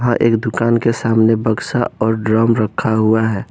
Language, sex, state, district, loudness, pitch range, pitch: Hindi, male, Jharkhand, Garhwa, -15 LUFS, 110-115 Hz, 110 Hz